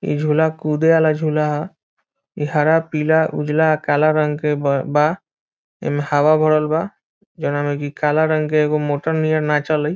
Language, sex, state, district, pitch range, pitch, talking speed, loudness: Hindi, male, Bihar, Saran, 150-155 Hz, 155 Hz, 175 wpm, -18 LUFS